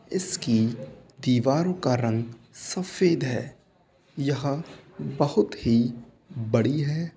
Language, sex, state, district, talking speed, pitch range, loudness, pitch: Hindi, male, Uttar Pradesh, Muzaffarnagar, 90 wpm, 120-170 Hz, -26 LUFS, 135 Hz